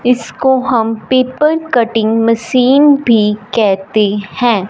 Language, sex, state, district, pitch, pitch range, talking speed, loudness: Hindi, female, Punjab, Fazilka, 230 Hz, 220-255 Hz, 100 wpm, -12 LUFS